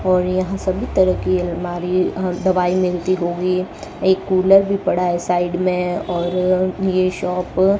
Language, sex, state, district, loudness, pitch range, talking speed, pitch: Hindi, male, Rajasthan, Bikaner, -18 LUFS, 180-185 Hz, 160 wpm, 185 Hz